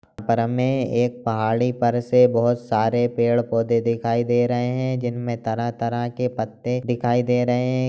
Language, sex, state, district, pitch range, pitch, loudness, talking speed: Hindi, male, Bihar, Jamui, 115-125 Hz, 120 Hz, -21 LUFS, 160 wpm